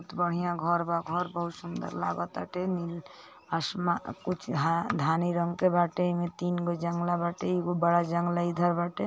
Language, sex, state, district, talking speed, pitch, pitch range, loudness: Hindi, female, Uttar Pradesh, Ghazipur, 165 wpm, 175 Hz, 170-175 Hz, -30 LUFS